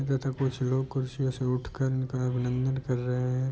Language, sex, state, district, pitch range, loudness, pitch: Hindi, male, Uttar Pradesh, Muzaffarnagar, 125-135 Hz, -30 LUFS, 130 Hz